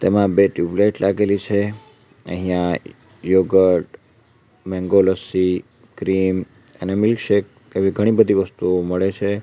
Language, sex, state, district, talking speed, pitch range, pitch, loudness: Gujarati, male, Gujarat, Valsad, 120 wpm, 95-105 Hz, 100 Hz, -19 LUFS